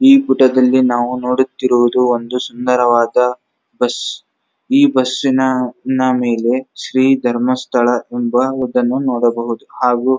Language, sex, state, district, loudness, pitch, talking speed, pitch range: Kannada, male, Karnataka, Dharwad, -15 LUFS, 125 Hz, 100 wpm, 120-130 Hz